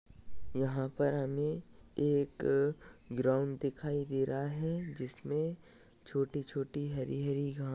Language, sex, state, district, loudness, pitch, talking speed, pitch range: Hindi, male, Maharashtra, Solapur, -35 LUFS, 140 Hz, 125 wpm, 135-145 Hz